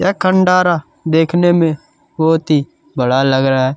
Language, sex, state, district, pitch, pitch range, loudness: Hindi, male, Chhattisgarh, Kabirdham, 160 Hz, 135-175 Hz, -14 LUFS